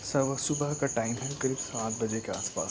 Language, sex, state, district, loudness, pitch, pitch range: Hindi, male, Uttar Pradesh, Etah, -31 LUFS, 130 Hz, 115-140 Hz